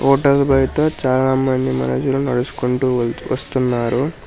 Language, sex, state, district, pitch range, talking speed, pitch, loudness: Telugu, male, Telangana, Hyderabad, 125-135 Hz, 100 wpm, 130 Hz, -18 LUFS